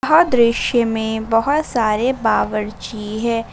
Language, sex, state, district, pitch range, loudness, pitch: Hindi, female, Jharkhand, Ranchi, 220-245 Hz, -18 LUFS, 230 Hz